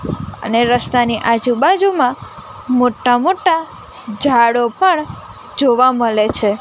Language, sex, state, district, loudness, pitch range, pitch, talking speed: Gujarati, female, Gujarat, Gandhinagar, -15 LUFS, 235-280 Hz, 245 Hz, 90 wpm